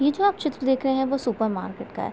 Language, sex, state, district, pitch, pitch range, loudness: Hindi, female, Uttar Pradesh, Gorakhpur, 265 Hz, 260-290 Hz, -24 LUFS